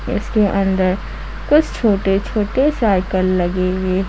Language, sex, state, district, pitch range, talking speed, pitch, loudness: Hindi, female, Jharkhand, Ranchi, 185-215 Hz, 75 wpm, 195 Hz, -17 LUFS